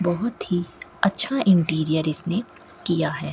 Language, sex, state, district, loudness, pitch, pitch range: Hindi, female, Rajasthan, Bikaner, -23 LUFS, 175 Hz, 160-210 Hz